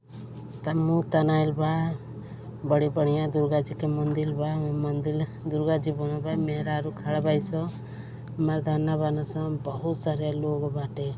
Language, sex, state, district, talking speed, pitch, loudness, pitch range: Bhojpuri, male, Uttar Pradesh, Deoria, 140 wpm, 150 Hz, -27 LUFS, 145-155 Hz